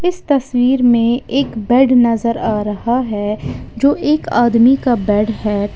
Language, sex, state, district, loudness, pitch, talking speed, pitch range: Hindi, female, Uttar Pradesh, Lalitpur, -15 LUFS, 240 Hz, 155 wpm, 220-265 Hz